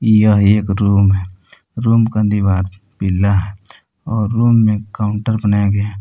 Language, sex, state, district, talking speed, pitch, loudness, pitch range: Hindi, male, Jharkhand, Palamu, 160 wpm, 105 Hz, -15 LUFS, 100-110 Hz